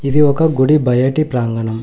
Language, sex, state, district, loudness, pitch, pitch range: Telugu, male, Telangana, Hyderabad, -14 LUFS, 135 Hz, 125-150 Hz